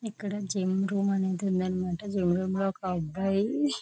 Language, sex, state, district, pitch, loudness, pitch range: Telugu, female, Andhra Pradesh, Visakhapatnam, 195 Hz, -29 LUFS, 185-200 Hz